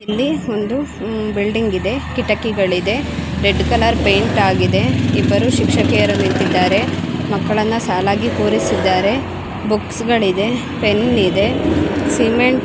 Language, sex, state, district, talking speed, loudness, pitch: Kannada, female, Karnataka, Gulbarga, 105 wpm, -16 LUFS, 210 Hz